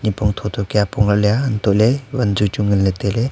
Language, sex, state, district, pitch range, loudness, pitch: Wancho, male, Arunachal Pradesh, Longding, 100-110 Hz, -17 LUFS, 105 Hz